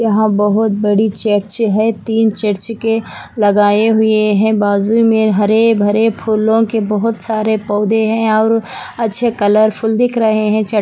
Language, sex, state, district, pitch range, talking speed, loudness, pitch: Hindi, female, Andhra Pradesh, Anantapur, 210-225 Hz, 155 wpm, -13 LUFS, 220 Hz